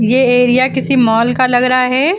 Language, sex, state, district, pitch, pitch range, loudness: Hindi, female, Uttar Pradesh, Lucknow, 255 Hz, 245-260 Hz, -12 LUFS